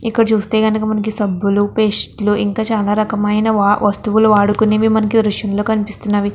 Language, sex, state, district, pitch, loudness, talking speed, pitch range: Telugu, female, Andhra Pradesh, Krishna, 215 Hz, -15 LUFS, 150 wpm, 205-220 Hz